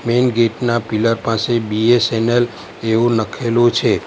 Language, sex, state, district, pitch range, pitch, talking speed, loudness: Gujarati, male, Gujarat, Valsad, 115-120 Hz, 115 Hz, 135 wpm, -16 LUFS